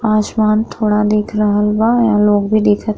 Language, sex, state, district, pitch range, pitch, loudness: Bhojpuri, female, Uttar Pradesh, Gorakhpur, 210-215 Hz, 215 Hz, -14 LUFS